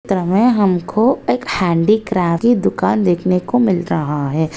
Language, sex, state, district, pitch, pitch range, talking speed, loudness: Hindi, female, Maharashtra, Nagpur, 185 Hz, 170-215 Hz, 155 wpm, -16 LUFS